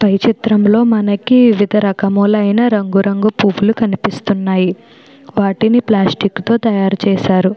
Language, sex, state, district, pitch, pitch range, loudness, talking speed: Telugu, female, Andhra Pradesh, Chittoor, 205 Hz, 195-220 Hz, -13 LUFS, 110 wpm